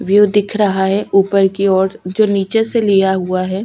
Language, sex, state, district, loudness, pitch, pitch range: Hindi, female, Chhattisgarh, Sukma, -14 LUFS, 195 Hz, 190-210 Hz